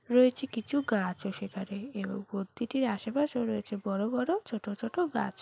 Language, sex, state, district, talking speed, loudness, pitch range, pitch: Bengali, female, West Bengal, Purulia, 155 wpm, -32 LUFS, 205-250 Hz, 225 Hz